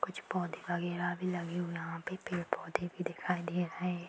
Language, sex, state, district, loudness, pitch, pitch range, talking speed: Hindi, female, Bihar, Bhagalpur, -37 LUFS, 175 Hz, 175-180 Hz, 220 wpm